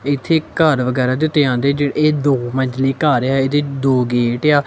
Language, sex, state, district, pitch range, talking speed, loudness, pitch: Punjabi, male, Punjab, Kapurthala, 130-150 Hz, 195 wpm, -16 LUFS, 140 Hz